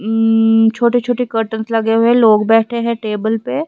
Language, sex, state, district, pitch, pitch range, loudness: Hindi, female, Himachal Pradesh, Shimla, 225 Hz, 225-235 Hz, -14 LUFS